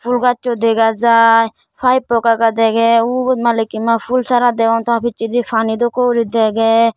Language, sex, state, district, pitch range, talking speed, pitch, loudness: Chakma, female, Tripura, Dhalai, 225-245 Hz, 155 wpm, 230 Hz, -14 LUFS